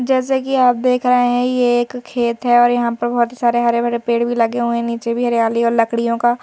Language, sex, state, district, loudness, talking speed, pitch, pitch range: Hindi, female, Madhya Pradesh, Bhopal, -16 LUFS, 270 wpm, 240 Hz, 235-245 Hz